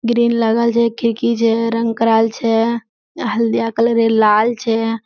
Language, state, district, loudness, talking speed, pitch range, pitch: Surjapuri, Bihar, Kishanganj, -16 LUFS, 140 wpm, 225-235 Hz, 230 Hz